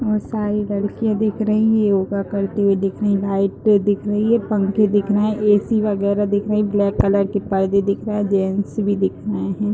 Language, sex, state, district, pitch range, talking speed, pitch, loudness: Hindi, female, Uttar Pradesh, Deoria, 200-210 Hz, 235 wpm, 205 Hz, -19 LUFS